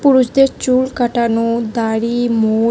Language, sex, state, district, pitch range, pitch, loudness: Bengali, female, Tripura, West Tripura, 230-255 Hz, 235 Hz, -15 LUFS